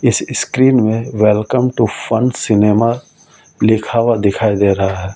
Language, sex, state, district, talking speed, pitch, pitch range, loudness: Hindi, male, Delhi, New Delhi, 150 wpm, 110 Hz, 105-120 Hz, -14 LUFS